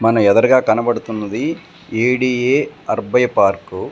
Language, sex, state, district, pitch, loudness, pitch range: Telugu, male, Telangana, Komaram Bheem, 120 Hz, -16 LUFS, 110-130 Hz